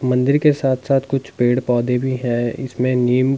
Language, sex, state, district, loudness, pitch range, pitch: Hindi, male, Delhi, New Delhi, -18 LUFS, 125-135 Hz, 130 Hz